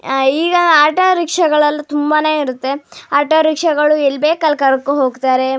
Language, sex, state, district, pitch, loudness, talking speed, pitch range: Kannada, female, Karnataka, Shimoga, 295 Hz, -13 LUFS, 140 wpm, 270-315 Hz